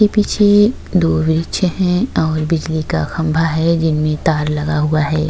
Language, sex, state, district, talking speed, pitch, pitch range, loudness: Hindi, female, Uttar Pradesh, Jyotiba Phule Nagar, 160 wpm, 160 Hz, 155-175 Hz, -15 LUFS